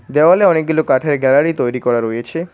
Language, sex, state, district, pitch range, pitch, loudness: Bengali, male, West Bengal, Cooch Behar, 125-160 Hz, 140 Hz, -14 LUFS